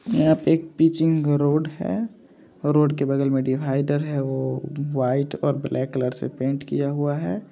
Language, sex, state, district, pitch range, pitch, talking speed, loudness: Hindi, male, Bihar, Samastipur, 135-155 Hz, 145 Hz, 170 wpm, -23 LUFS